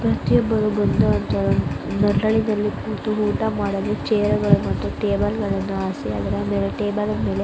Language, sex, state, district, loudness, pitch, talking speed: Kannada, female, Karnataka, Mysore, -21 LUFS, 110 Hz, 95 wpm